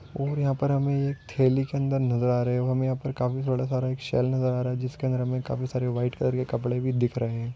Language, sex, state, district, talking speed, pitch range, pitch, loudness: Hindi, male, Maharashtra, Dhule, 270 wpm, 125-135 Hz, 130 Hz, -27 LUFS